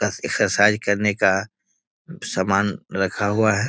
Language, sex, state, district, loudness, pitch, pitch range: Hindi, male, Bihar, East Champaran, -20 LUFS, 100 Hz, 100-105 Hz